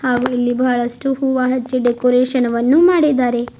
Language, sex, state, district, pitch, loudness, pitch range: Kannada, female, Karnataka, Bidar, 250 Hz, -16 LUFS, 245-260 Hz